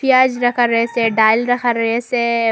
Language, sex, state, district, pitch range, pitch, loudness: Bengali, female, Assam, Hailakandi, 230-245 Hz, 235 Hz, -15 LUFS